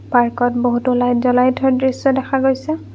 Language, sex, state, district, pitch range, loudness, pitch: Assamese, female, Assam, Kamrup Metropolitan, 245-265 Hz, -16 LUFS, 255 Hz